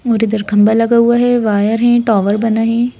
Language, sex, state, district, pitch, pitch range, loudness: Hindi, female, Madhya Pradesh, Bhopal, 225 Hz, 215-235 Hz, -12 LUFS